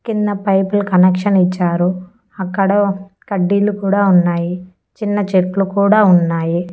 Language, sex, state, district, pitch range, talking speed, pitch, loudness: Telugu, female, Andhra Pradesh, Annamaya, 180-205 Hz, 105 wpm, 195 Hz, -15 LUFS